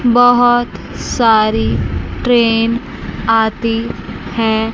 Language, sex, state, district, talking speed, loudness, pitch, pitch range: Hindi, female, Chandigarh, Chandigarh, 65 wpm, -14 LUFS, 230 Hz, 220-240 Hz